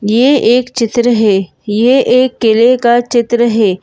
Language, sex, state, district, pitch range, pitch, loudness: Hindi, female, Madhya Pradesh, Bhopal, 220-245 Hz, 235 Hz, -11 LUFS